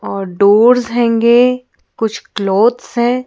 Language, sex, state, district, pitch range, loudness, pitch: Hindi, female, Madhya Pradesh, Bhopal, 215-245 Hz, -13 LUFS, 235 Hz